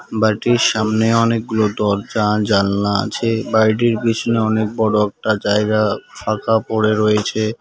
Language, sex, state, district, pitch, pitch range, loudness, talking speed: Bengali, male, West Bengal, Cooch Behar, 110 Hz, 105-110 Hz, -17 LUFS, 120 wpm